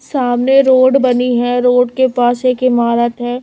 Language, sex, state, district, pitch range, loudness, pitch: Hindi, female, Chhattisgarh, Raipur, 245-255 Hz, -12 LUFS, 250 Hz